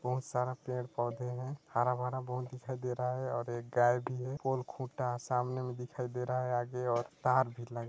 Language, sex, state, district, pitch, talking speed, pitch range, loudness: Hindi, male, Chhattisgarh, Sarguja, 125 Hz, 205 wpm, 120-130 Hz, -35 LUFS